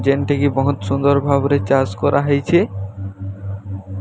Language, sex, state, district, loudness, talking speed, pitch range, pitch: Odia, female, Odisha, Sambalpur, -17 LUFS, 120 wpm, 100-140 Hz, 135 Hz